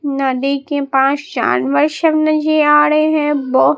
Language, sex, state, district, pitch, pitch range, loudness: Hindi, male, Bihar, Katihar, 290 Hz, 270-305 Hz, -14 LUFS